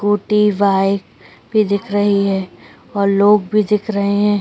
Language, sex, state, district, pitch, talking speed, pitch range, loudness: Hindi, female, Uttar Pradesh, Etah, 205 Hz, 165 wpm, 200-210 Hz, -16 LUFS